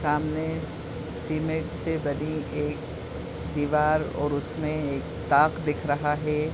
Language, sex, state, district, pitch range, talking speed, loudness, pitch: Hindi, female, Uttar Pradesh, Deoria, 150-155 Hz, 120 wpm, -27 LUFS, 150 Hz